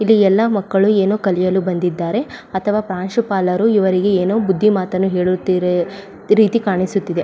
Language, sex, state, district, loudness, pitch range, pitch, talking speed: Kannada, female, Karnataka, Mysore, -16 LUFS, 185-210 Hz, 195 Hz, 135 wpm